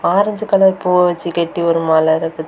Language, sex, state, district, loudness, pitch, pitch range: Tamil, female, Tamil Nadu, Kanyakumari, -15 LUFS, 170 Hz, 165-190 Hz